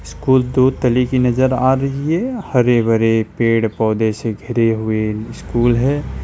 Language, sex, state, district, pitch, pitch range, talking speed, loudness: Hindi, male, West Bengal, Alipurduar, 120 Hz, 110-130 Hz, 165 wpm, -16 LUFS